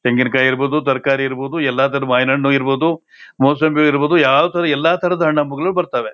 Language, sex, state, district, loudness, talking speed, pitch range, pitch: Kannada, male, Karnataka, Shimoga, -16 LUFS, 155 wpm, 135-155 Hz, 140 Hz